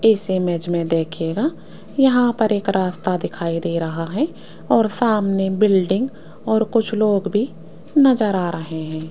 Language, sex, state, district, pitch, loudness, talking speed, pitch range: Hindi, female, Rajasthan, Jaipur, 195 Hz, -19 LUFS, 150 wpm, 170-220 Hz